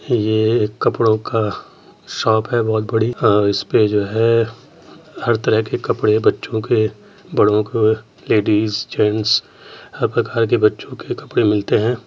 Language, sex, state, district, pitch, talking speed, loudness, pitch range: Hindi, male, Uttar Pradesh, Jyotiba Phule Nagar, 110 Hz, 155 wpm, -17 LUFS, 105-120 Hz